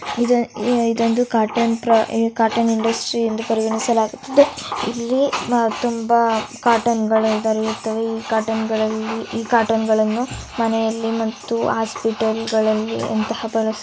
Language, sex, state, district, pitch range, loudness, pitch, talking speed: Kannada, female, Karnataka, Dharwad, 220-230 Hz, -19 LUFS, 225 Hz, 60 wpm